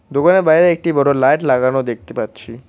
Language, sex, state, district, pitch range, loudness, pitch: Bengali, male, West Bengal, Cooch Behar, 120-160 Hz, -15 LUFS, 140 Hz